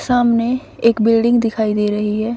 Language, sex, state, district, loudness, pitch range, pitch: Hindi, female, Haryana, Rohtak, -16 LUFS, 215-235 Hz, 230 Hz